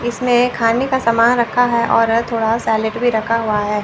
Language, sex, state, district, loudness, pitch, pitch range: Hindi, female, Chandigarh, Chandigarh, -16 LUFS, 230 Hz, 225-240 Hz